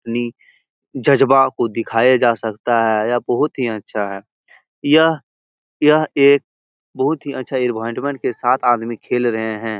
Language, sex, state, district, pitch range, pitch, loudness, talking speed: Hindi, male, Bihar, Jahanabad, 115-140 Hz, 120 Hz, -17 LUFS, 140 wpm